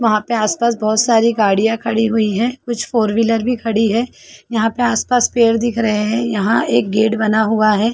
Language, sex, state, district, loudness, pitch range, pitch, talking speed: Hindi, female, Chhattisgarh, Bilaspur, -16 LUFS, 215-235 Hz, 225 Hz, 220 wpm